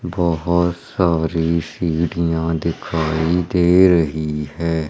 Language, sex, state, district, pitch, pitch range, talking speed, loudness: Hindi, male, Madhya Pradesh, Umaria, 85 Hz, 80-85 Hz, 85 wpm, -18 LUFS